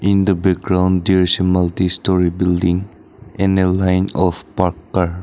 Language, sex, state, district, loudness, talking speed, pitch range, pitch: English, male, Nagaland, Dimapur, -17 LUFS, 170 wpm, 90-95 Hz, 90 Hz